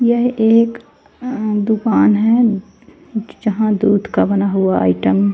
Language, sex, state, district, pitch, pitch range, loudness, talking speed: Hindi, female, Haryana, Charkhi Dadri, 220 Hz, 200-235 Hz, -15 LUFS, 110 wpm